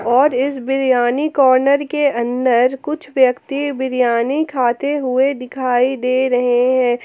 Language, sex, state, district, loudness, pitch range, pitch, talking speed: Hindi, female, Jharkhand, Palamu, -16 LUFS, 250-280 Hz, 260 Hz, 130 wpm